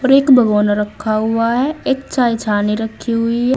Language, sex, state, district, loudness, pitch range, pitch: Hindi, female, Uttar Pradesh, Saharanpur, -15 LUFS, 215-260 Hz, 230 Hz